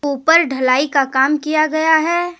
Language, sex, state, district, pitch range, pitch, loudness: Hindi, female, Jharkhand, Deoghar, 275-320 Hz, 310 Hz, -15 LUFS